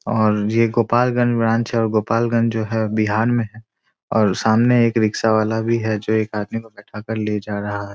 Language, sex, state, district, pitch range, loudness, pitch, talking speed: Hindi, male, Bihar, Muzaffarpur, 110-115 Hz, -19 LUFS, 110 Hz, 220 wpm